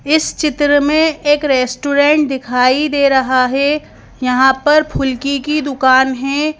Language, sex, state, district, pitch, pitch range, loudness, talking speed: Hindi, female, Madhya Pradesh, Bhopal, 280 Hz, 265-300 Hz, -13 LUFS, 135 wpm